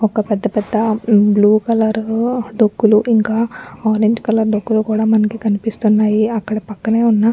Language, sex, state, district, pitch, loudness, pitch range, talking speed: Telugu, female, Andhra Pradesh, Anantapur, 220 Hz, -15 LUFS, 215-225 Hz, 145 wpm